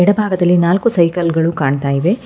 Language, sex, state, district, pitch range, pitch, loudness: Kannada, female, Karnataka, Bangalore, 165-185 Hz, 175 Hz, -14 LUFS